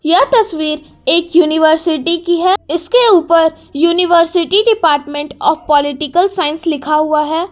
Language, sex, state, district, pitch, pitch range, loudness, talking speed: Hindi, female, Jharkhand, Palamu, 330 Hz, 305-350 Hz, -13 LUFS, 130 wpm